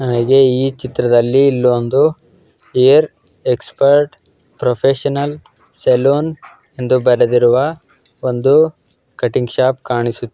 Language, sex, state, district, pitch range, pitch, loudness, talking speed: Kannada, male, Karnataka, Dakshina Kannada, 125-140 Hz, 130 Hz, -14 LUFS, 80 wpm